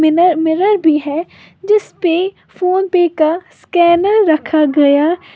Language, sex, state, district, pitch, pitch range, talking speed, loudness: Hindi, female, Uttar Pradesh, Lalitpur, 345 Hz, 315-370 Hz, 100 wpm, -13 LUFS